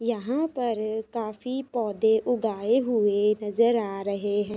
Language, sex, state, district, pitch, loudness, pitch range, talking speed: Hindi, female, Uttar Pradesh, Ghazipur, 220 Hz, -26 LUFS, 210-240 Hz, 130 wpm